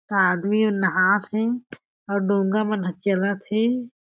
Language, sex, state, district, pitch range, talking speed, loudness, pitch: Chhattisgarhi, female, Chhattisgarh, Jashpur, 195-215 Hz, 145 wpm, -22 LUFS, 200 Hz